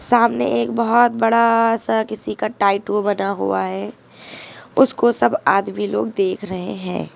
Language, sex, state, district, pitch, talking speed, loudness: Hindi, female, Uttar Pradesh, Lucknow, 200 Hz, 150 wpm, -18 LUFS